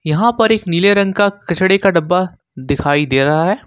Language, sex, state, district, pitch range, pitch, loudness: Hindi, male, Jharkhand, Ranchi, 155-200 Hz, 180 Hz, -14 LUFS